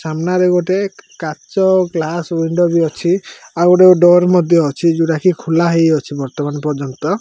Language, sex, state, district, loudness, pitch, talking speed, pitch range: Odia, male, Odisha, Malkangiri, -14 LUFS, 170 Hz, 160 wpm, 155-180 Hz